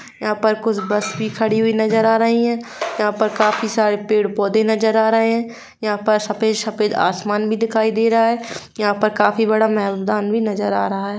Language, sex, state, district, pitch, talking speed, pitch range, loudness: Hindi, female, Bihar, Sitamarhi, 220 Hz, 205 wpm, 210-225 Hz, -18 LUFS